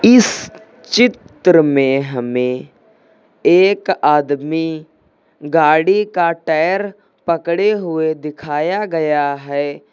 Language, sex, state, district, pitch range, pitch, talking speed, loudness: Hindi, male, Uttar Pradesh, Lucknow, 145-185 Hz, 160 Hz, 85 wpm, -15 LUFS